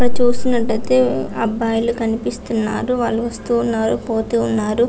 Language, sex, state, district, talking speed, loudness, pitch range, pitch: Telugu, female, Andhra Pradesh, Visakhapatnam, 125 wpm, -19 LUFS, 220-235 Hz, 230 Hz